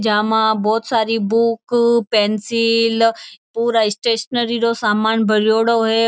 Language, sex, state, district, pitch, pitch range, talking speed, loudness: Marwari, female, Rajasthan, Churu, 225 Hz, 220-230 Hz, 110 wpm, -16 LUFS